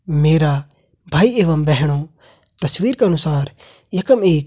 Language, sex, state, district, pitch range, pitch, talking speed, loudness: Kumaoni, male, Uttarakhand, Tehri Garhwal, 150-185 Hz, 155 Hz, 135 wpm, -16 LUFS